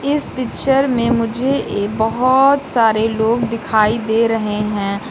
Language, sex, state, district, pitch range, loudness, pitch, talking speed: Hindi, female, Uttar Pradesh, Lucknow, 220-260 Hz, -16 LUFS, 230 Hz, 130 wpm